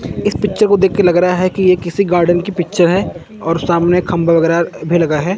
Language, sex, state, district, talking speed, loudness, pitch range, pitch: Hindi, male, Chandigarh, Chandigarh, 245 wpm, -14 LUFS, 170-190 Hz, 175 Hz